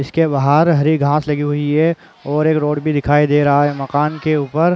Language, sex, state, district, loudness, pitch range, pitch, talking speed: Chhattisgarhi, male, Chhattisgarh, Raigarh, -15 LUFS, 145-155 Hz, 150 Hz, 225 wpm